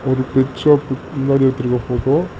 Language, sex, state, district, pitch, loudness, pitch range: Tamil, male, Tamil Nadu, Namakkal, 130 Hz, -17 LUFS, 130-135 Hz